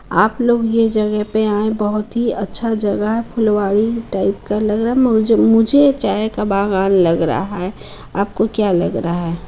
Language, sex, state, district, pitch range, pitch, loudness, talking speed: Hindi, female, Bihar, Muzaffarpur, 200-225 Hz, 215 Hz, -16 LUFS, 190 wpm